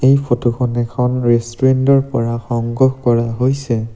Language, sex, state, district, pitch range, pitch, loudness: Assamese, male, Assam, Sonitpur, 115-130 Hz, 120 Hz, -16 LUFS